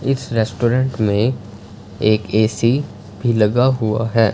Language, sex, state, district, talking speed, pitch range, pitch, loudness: Hindi, male, Punjab, Fazilka, 125 wpm, 105-120 Hz, 110 Hz, -17 LUFS